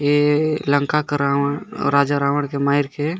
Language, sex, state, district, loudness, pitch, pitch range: Sadri, male, Chhattisgarh, Jashpur, -19 LUFS, 145 Hz, 140-150 Hz